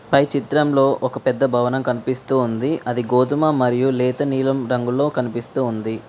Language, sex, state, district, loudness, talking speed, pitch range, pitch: Telugu, female, Telangana, Mahabubabad, -19 LUFS, 150 wpm, 125-140 Hz, 130 Hz